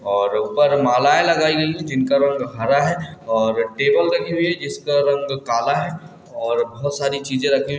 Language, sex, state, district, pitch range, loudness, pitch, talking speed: Hindi, male, Chhattisgarh, Balrampur, 130-165 Hz, -19 LUFS, 140 Hz, 185 wpm